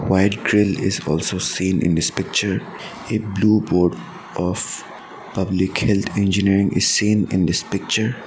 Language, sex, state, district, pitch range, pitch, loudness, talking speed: English, male, Assam, Sonitpur, 90-105 Hz, 95 Hz, -19 LUFS, 145 wpm